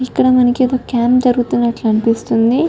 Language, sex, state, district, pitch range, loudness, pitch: Telugu, female, Telangana, Karimnagar, 235-255 Hz, -14 LUFS, 245 Hz